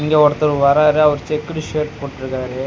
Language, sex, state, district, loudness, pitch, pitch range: Tamil, male, Tamil Nadu, Nilgiris, -16 LUFS, 150 Hz, 140-150 Hz